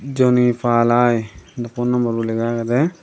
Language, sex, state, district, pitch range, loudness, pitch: Chakma, male, Tripura, Dhalai, 115-125 Hz, -18 LUFS, 120 Hz